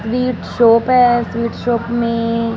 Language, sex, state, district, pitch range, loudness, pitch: Hindi, female, Punjab, Fazilka, 230-240 Hz, -15 LUFS, 235 Hz